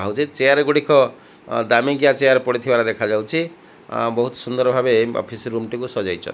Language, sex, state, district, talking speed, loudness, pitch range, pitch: Odia, male, Odisha, Malkangiri, 170 wpm, -19 LUFS, 115-140 Hz, 125 Hz